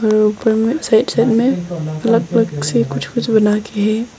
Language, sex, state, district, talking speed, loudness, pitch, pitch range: Hindi, female, Arunachal Pradesh, Longding, 200 wpm, -16 LUFS, 220 Hz, 190-230 Hz